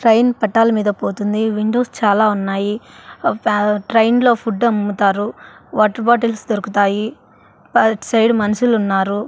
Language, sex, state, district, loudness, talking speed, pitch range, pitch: Telugu, female, Andhra Pradesh, Annamaya, -16 LUFS, 105 wpm, 205-230 Hz, 215 Hz